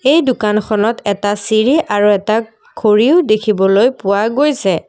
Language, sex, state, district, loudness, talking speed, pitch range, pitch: Assamese, female, Assam, Kamrup Metropolitan, -13 LUFS, 125 wpm, 205-250 Hz, 215 Hz